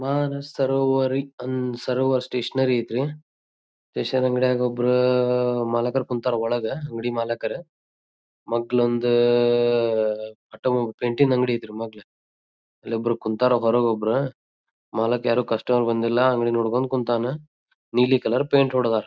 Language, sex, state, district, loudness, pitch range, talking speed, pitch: Kannada, male, Karnataka, Dharwad, -23 LUFS, 115-130 Hz, 120 wpm, 125 Hz